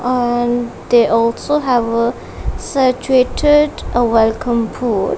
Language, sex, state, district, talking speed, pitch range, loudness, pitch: English, female, Punjab, Kapurthala, 105 wpm, 230-255 Hz, -15 LUFS, 240 Hz